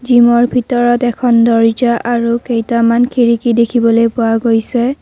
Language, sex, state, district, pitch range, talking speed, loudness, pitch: Assamese, female, Assam, Kamrup Metropolitan, 230-240 Hz, 120 wpm, -12 LUFS, 235 Hz